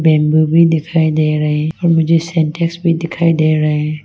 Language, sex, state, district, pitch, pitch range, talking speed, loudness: Hindi, female, Arunachal Pradesh, Longding, 160 Hz, 155-165 Hz, 180 wpm, -14 LUFS